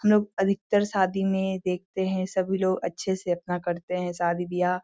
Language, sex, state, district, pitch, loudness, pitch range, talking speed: Hindi, female, Bihar, Lakhisarai, 185 Hz, -27 LUFS, 180-195 Hz, 200 wpm